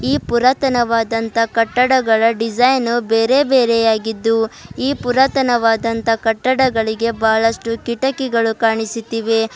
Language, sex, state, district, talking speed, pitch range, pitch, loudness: Kannada, female, Karnataka, Bidar, 80 wpm, 225-250 Hz, 230 Hz, -16 LUFS